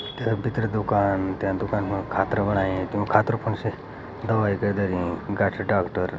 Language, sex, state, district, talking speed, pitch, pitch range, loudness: Garhwali, male, Uttarakhand, Uttarkashi, 165 wpm, 100 Hz, 95-110 Hz, -25 LUFS